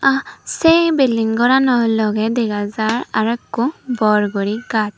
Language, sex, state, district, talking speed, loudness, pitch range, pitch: Chakma, female, Tripura, Unakoti, 130 wpm, -17 LUFS, 215-255 Hz, 230 Hz